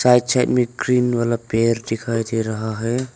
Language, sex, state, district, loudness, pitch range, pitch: Hindi, male, Arunachal Pradesh, Longding, -20 LUFS, 115-125 Hz, 115 Hz